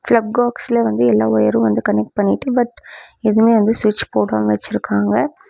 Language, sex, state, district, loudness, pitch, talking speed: Tamil, female, Tamil Nadu, Namakkal, -16 LUFS, 210 Hz, 155 wpm